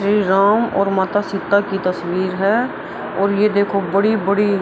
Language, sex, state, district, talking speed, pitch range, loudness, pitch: Hindi, female, Bihar, Araria, 170 wpm, 195-205 Hz, -17 LUFS, 200 Hz